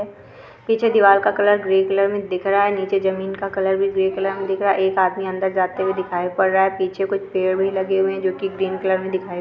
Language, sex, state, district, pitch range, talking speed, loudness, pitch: Hindi, female, Andhra Pradesh, Krishna, 190-195 Hz, 285 wpm, -19 LUFS, 190 Hz